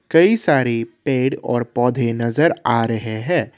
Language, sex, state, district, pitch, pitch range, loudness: Hindi, male, Assam, Kamrup Metropolitan, 125 Hz, 115-150 Hz, -18 LUFS